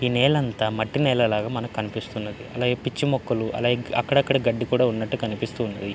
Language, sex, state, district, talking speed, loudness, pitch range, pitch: Telugu, male, Andhra Pradesh, Guntur, 150 wpm, -24 LUFS, 110-130 Hz, 120 Hz